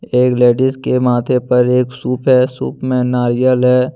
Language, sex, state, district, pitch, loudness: Hindi, male, Jharkhand, Deoghar, 125 Hz, -14 LUFS